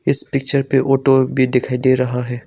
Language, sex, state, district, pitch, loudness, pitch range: Hindi, male, Arunachal Pradesh, Longding, 130 Hz, -16 LUFS, 125-135 Hz